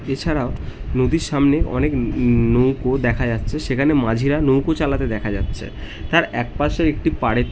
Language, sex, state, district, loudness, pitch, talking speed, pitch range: Bengali, male, West Bengal, North 24 Parganas, -19 LUFS, 130 Hz, 170 wpm, 115-140 Hz